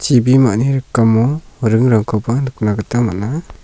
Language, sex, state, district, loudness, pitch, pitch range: Garo, male, Meghalaya, South Garo Hills, -15 LUFS, 120 Hz, 110-130 Hz